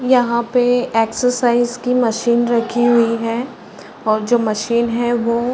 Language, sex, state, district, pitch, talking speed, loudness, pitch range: Hindi, female, Uttar Pradesh, Varanasi, 235 Hz, 150 wpm, -17 LUFS, 230-245 Hz